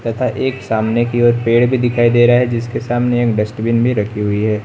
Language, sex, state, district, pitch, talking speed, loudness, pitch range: Hindi, male, Uttar Pradesh, Lucknow, 120 Hz, 245 wpm, -15 LUFS, 110-120 Hz